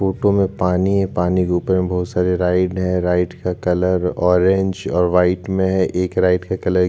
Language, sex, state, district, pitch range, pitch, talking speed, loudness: Hindi, male, Chhattisgarh, Jashpur, 90-95 Hz, 90 Hz, 220 wpm, -18 LUFS